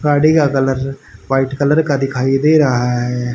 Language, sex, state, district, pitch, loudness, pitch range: Hindi, male, Haryana, Rohtak, 135 Hz, -15 LUFS, 125-145 Hz